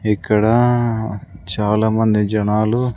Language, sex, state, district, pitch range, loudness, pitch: Telugu, male, Andhra Pradesh, Sri Satya Sai, 105-115 Hz, -17 LUFS, 110 Hz